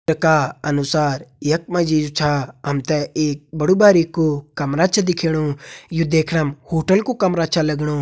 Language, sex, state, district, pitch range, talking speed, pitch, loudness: Hindi, male, Uttarakhand, Uttarkashi, 145-170 Hz, 170 wpm, 155 Hz, -18 LUFS